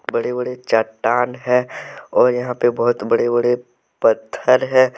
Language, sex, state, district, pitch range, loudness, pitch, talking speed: Hindi, male, Jharkhand, Deoghar, 120-125 Hz, -18 LUFS, 125 Hz, 145 wpm